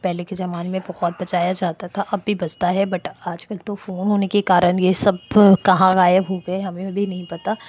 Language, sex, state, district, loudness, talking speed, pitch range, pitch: Hindi, female, Maharashtra, Chandrapur, -19 LUFS, 225 wpm, 180-200 Hz, 185 Hz